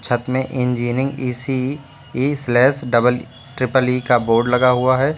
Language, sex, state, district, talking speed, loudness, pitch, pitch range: Hindi, male, Uttar Pradesh, Lucknow, 150 wpm, -18 LUFS, 130 Hz, 125-135 Hz